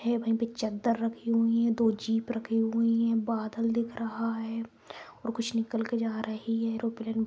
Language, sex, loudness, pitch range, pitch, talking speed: Magahi, female, -30 LUFS, 225-230 Hz, 230 Hz, 205 wpm